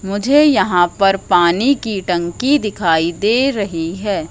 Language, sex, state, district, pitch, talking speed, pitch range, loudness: Hindi, female, Madhya Pradesh, Katni, 195 Hz, 140 wpm, 175-220 Hz, -15 LUFS